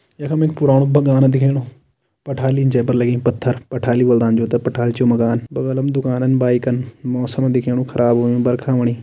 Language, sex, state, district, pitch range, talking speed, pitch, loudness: Kumaoni, male, Uttarakhand, Tehri Garhwal, 120-135 Hz, 185 wpm, 125 Hz, -17 LUFS